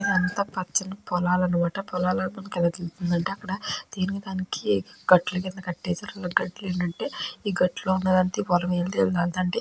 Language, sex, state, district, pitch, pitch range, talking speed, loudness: Telugu, female, Andhra Pradesh, Chittoor, 180 Hz, 175-190 Hz, 130 wpm, -26 LUFS